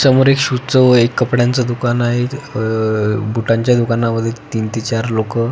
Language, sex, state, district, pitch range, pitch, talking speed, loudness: Marathi, male, Maharashtra, Pune, 115-125 Hz, 120 Hz, 175 wpm, -15 LUFS